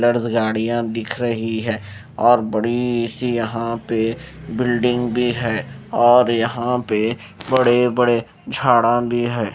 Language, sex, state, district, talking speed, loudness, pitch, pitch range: Hindi, male, Maharashtra, Mumbai Suburban, 120 wpm, -19 LUFS, 120 Hz, 115-120 Hz